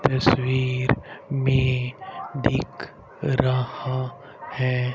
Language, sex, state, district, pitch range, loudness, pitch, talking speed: Hindi, male, Haryana, Rohtak, 130-135 Hz, -24 LUFS, 130 Hz, 60 wpm